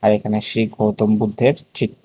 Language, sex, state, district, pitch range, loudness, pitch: Bengali, male, Tripura, West Tripura, 105-110 Hz, -19 LUFS, 105 Hz